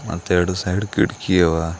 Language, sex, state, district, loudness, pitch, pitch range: Kannada, male, Karnataka, Bidar, -19 LUFS, 90 Hz, 85-100 Hz